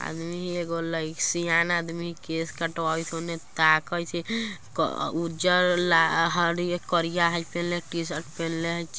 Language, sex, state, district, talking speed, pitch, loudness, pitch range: Bajjika, female, Bihar, Vaishali, 135 wpm, 170 Hz, -26 LUFS, 165-175 Hz